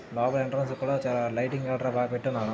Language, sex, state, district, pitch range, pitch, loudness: Telugu, male, Karnataka, Dharwad, 120-135 Hz, 130 Hz, -29 LUFS